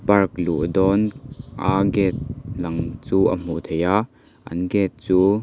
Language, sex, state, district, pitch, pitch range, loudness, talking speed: Mizo, male, Mizoram, Aizawl, 95 Hz, 85-105 Hz, -21 LUFS, 155 wpm